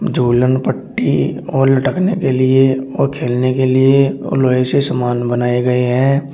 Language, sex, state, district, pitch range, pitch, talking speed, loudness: Hindi, male, Uttar Pradesh, Shamli, 125-135 Hz, 130 Hz, 160 wpm, -15 LUFS